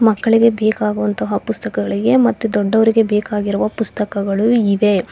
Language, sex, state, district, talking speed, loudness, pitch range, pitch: Kannada, female, Karnataka, Bangalore, 95 wpm, -16 LUFS, 200-225 Hz, 210 Hz